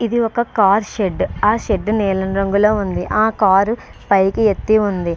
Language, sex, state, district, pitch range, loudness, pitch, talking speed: Telugu, female, Andhra Pradesh, Srikakulam, 195-220 Hz, -16 LUFS, 205 Hz, 160 wpm